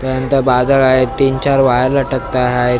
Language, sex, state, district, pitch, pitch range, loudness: Marathi, male, Maharashtra, Mumbai Suburban, 130 Hz, 125-135 Hz, -13 LUFS